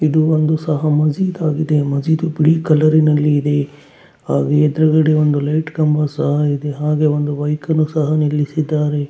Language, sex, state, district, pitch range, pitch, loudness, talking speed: Kannada, male, Karnataka, Dakshina Kannada, 145-155 Hz, 150 Hz, -16 LUFS, 145 wpm